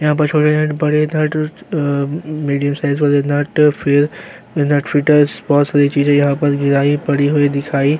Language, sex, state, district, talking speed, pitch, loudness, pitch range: Hindi, male, Uttarakhand, Tehri Garhwal, 185 wpm, 145 Hz, -15 LUFS, 145-150 Hz